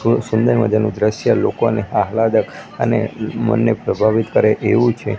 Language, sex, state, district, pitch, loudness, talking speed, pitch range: Gujarati, male, Gujarat, Gandhinagar, 110 Hz, -17 LUFS, 125 wpm, 110-115 Hz